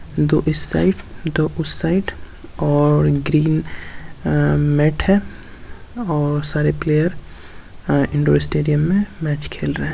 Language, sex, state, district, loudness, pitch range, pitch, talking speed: Hindi, male, Uttar Pradesh, Varanasi, -17 LUFS, 145-160 Hz, 150 Hz, 140 wpm